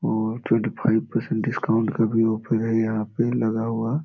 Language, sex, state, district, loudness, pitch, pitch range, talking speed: Hindi, male, Bihar, Jamui, -23 LUFS, 115 Hz, 110-115 Hz, 205 wpm